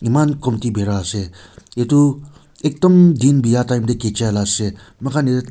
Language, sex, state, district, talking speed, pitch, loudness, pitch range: Nagamese, male, Nagaland, Kohima, 150 wpm, 120 Hz, -16 LUFS, 105-145 Hz